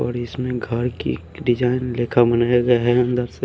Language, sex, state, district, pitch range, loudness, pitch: Hindi, male, Haryana, Rohtak, 120-125 Hz, -20 LUFS, 120 Hz